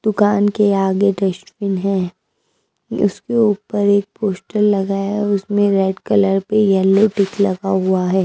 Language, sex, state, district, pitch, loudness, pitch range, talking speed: Hindi, female, Maharashtra, Mumbai Suburban, 200 Hz, -17 LUFS, 195-205 Hz, 145 wpm